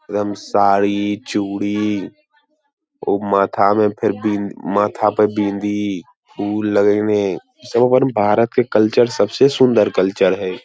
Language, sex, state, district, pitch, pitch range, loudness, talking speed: Hindi, male, Bihar, Lakhisarai, 105 Hz, 100-120 Hz, -17 LUFS, 135 wpm